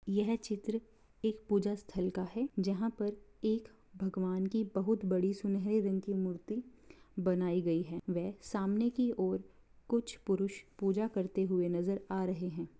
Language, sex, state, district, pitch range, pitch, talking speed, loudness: Hindi, female, Bihar, Samastipur, 185-220 Hz, 195 Hz, 160 wpm, -35 LUFS